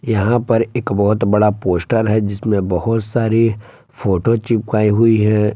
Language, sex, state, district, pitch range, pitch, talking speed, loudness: Hindi, male, Jharkhand, Palamu, 105-115 Hz, 110 Hz, 160 wpm, -16 LUFS